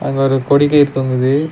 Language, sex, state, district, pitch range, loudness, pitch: Tamil, male, Tamil Nadu, Nilgiris, 135-145 Hz, -14 LUFS, 135 Hz